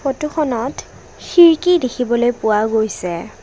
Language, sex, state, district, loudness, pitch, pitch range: Assamese, female, Assam, Kamrup Metropolitan, -16 LUFS, 240 Hz, 220-300 Hz